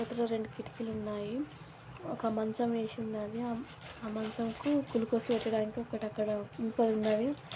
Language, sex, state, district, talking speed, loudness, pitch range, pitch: Telugu, female, Telangana, Karimnagar, 125 wpm, -35 LUFS, 220-235 Hz, 225 Hz